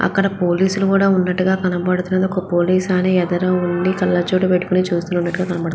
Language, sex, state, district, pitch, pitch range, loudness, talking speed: Telugu, female, Andhra Pradesh, Visakhapatnam, 185 Hz, 180-185 Hz, -17 LUFS, 145 wpm